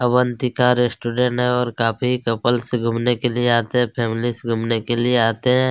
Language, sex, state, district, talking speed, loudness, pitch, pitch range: Hindi, male, Chhattisgarh, Kabirdham, 180 wpm, -19 LUFS, 120 Hz, 115-125 Hz